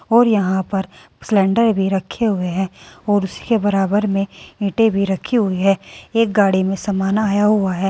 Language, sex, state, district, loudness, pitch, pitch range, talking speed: Hindi, female, Uttar Pradesh, Saharanpur, -18 LUFS, 200 Hz, 190-210 Hz, 180 wpm